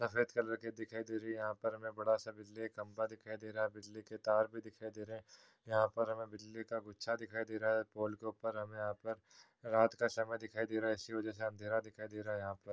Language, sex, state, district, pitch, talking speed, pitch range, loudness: Hindi, male, Uttar Pradesh, Jyotiba Phule Nagar, 110 Hz, 285 wpm, 110-115 Hz, -40 LUFS